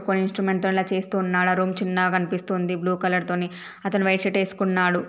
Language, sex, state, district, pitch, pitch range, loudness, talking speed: Telugu, female, Andhra Pradesh, Srikakulam, 185 Hz, 180-195 Hz, -23 LUFS, 200 wpm